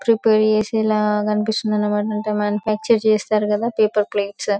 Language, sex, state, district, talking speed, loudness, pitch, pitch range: Telugu, female, Telangana, Karimnagar, 145 wpm, -19 LUFS, 215 Hz, 210-215 Hz